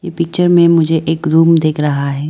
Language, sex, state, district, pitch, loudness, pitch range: Hindi, female, Arunachal Pradesh, Lower Dibang Valley, 165 Hz, -12 LUFS, 155-170 Hz